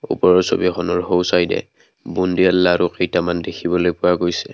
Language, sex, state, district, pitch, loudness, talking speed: Assamese, male, Assam, Kamrup Metropolitan, 90 Hz, -18 LUFS, 130 wpm